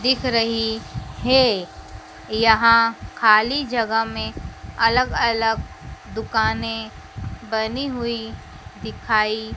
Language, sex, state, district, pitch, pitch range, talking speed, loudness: Hindi, female, Madhya Pradesh, Dhar, 225 Hz, 215-235 Hz, 80 wpm, -20 LUFS